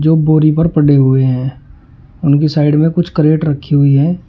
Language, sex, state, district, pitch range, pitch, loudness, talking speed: Hindi, male, Uttar Pradesh, Shamli, 140-155 Hz, 150 Hz, -12 LUFS, 195 wpm